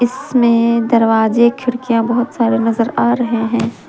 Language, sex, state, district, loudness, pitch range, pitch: Hindi, female, Jharkhand, Palamu, -14 LUFS, 230-245 Hz, 235 Hz